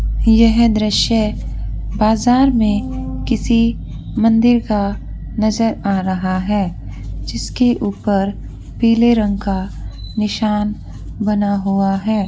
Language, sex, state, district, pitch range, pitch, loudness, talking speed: Hindi, female, Rajasthan, Churu, 195-225 Hz, 210 Hz, -16 LUFS, 100 wpm